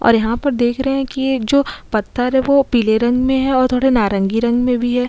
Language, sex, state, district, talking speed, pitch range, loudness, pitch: Hindi, female, Uttar Pradesh, Jyotiba Phule Nagar, 270 wpm, 235-265 Hz, -16 LUFS, 250 Hz